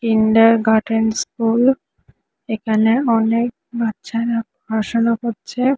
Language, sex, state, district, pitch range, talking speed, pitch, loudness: Bengali, female, West Bengal, Kolkata, 220-235 Hz, 75 wpm, 230 Hz, -18 LUFS